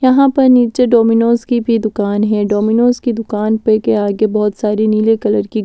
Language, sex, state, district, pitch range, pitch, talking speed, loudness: Hindi, female, Delhi, New Delhi, 210-240 Hz, 220 Hz, 200 wpm, -13 LUFS